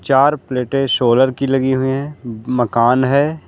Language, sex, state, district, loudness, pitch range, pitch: Hindi, male, Uttar Pradesh, Lalitpur, -16 LUFS, 125-135 Hz, 130 Hz